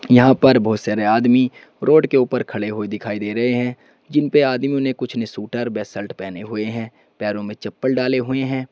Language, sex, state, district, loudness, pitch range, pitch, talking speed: Hindi, male, Uttar Pradesh, Saharanpur, -19 LUFS, 105-130 Hz, 120 Hz, 215 wpm